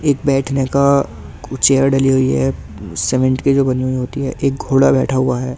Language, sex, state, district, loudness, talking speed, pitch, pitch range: Hindi, male, Delhi, New Delhi, -15 LUFS, 225 wpm, 135 Hz, 125-135 Hz